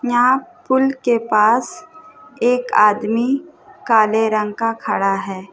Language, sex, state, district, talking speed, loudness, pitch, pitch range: Hindi, female, Uttar Pradesh, Hamirpur, 120 wpm, -17 LUFS, 235 Hz, 215-260 Hz